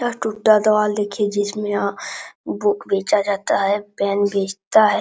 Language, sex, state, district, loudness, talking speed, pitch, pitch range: Hindi, male, Bihar, Supaul, -19 LUFS, 155 wpm, 205 Hz, 200-215 Hz